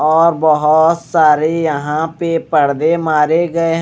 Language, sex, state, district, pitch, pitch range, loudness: Hindi, male, Odisha, Malkangiri, 160 Hz, 155-165 Hz, -13 LUFS